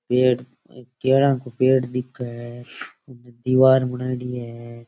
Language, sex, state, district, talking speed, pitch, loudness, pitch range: Rajasthani, male, Rajasthan, Churu, 110 wpm, 125 Hz, -21 LUFS, 120-130 Hz